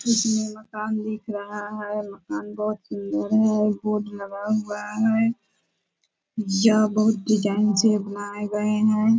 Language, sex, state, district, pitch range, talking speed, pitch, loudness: Hindi, female, Bihar, Purnia, 205-215 Hz, 135 wpm, 210 Hz, -24 LUFS